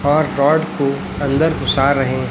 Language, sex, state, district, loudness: Hindi, male, Chhattisgarh, Raipur, -16 LUFS